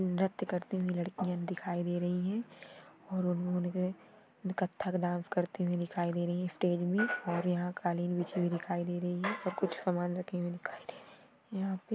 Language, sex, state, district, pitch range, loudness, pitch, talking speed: Hindi, female, Maharashtra, Aurangabad, 175-185 Hz, -35 LUFS, 180 Hz, 200 wpm